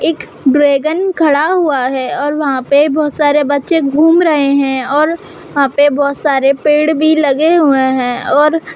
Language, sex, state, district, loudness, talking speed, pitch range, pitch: Hindi, female, Uttar Pradesh, Gorakhpur, -12 LUFS, 180 wpm, 280-310 Hz, 290 Hz